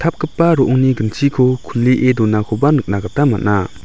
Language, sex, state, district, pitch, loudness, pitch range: Garo, male, Meghalaya, West Garo Hills, 130 Hz, -15 LUFS, 110-145 Hz